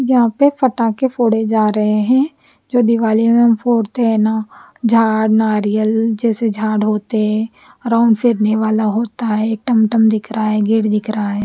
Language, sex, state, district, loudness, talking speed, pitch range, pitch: Hindi, female, Chandigarh, Chandigarh, -15 LUFS, 170 wpm, 215-235 Hz, 220 Hz